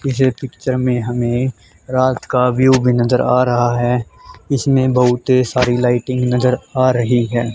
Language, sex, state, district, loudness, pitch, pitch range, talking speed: Hindi, male, Haryana, Charkhi Dadri, -16 LUFS, 125 Hz, 120-130 Hz, 160 wpm